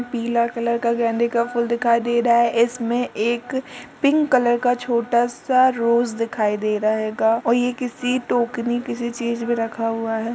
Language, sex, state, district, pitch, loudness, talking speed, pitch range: Hindi, female, Uttar Pradesh, Jalaun, 235 Hz, -20 LUFS, 195 wpm, 235-245 Hz